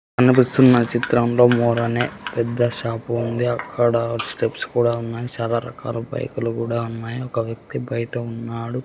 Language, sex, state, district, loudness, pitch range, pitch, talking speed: Telugu, male, Andhra Pradesh, Sri Satya Sai, -21 LUFS, 115-120 Hz, 120 Hz, 135 wpm